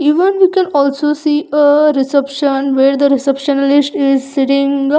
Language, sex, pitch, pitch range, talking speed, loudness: English, female, 280 Hz, 275-300 Hz, 180 wpm, -12 LUFS